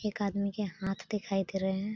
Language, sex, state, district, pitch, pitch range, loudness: Hindi, female, Bihar, Saran, 200 Hz, 195-210 Hz, -34 LUFS